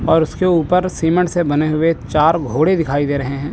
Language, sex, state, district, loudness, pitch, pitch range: Hindi, male, Chandigarh, Chandigarh, -16 LUFS, 160 Hz, 145-175 Hz